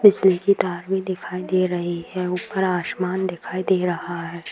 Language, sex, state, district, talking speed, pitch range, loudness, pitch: Hindi, female, Bihar, Jamui, 185 wpm, 175-190 Hz, -23 LUFS, 185 Hz